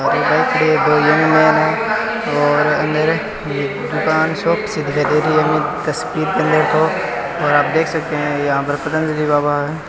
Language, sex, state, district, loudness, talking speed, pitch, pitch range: Hindi, male, Rajasthan, Bikaner, -16 LUFS, 115 wpm, 150 Hz, 145-155 Hz